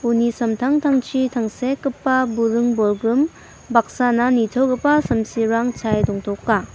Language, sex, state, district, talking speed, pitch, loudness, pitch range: Garo, female, Meghalaya, West Garo Hills, 80 wpm, 240 Hz, -19 LUFS, 225-260 Hz